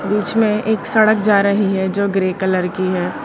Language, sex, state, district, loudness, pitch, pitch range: Hindi, female, Gujarat, Valsad, -16 LUFS, 200 Hz, 190-215 Hz